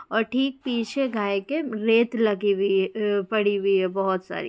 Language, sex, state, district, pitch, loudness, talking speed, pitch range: Hindi, female, Bihar, Jamui, 210 Hz, -24 LUFS, 185 wpm, 195-235 Hz